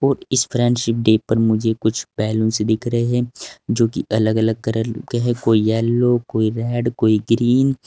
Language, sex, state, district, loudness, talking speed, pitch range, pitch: Hindi, male, Uttar Pradesh, Saharanpur, -18 LUFS, 185 wpm, 110-120 Hz, 115 Hz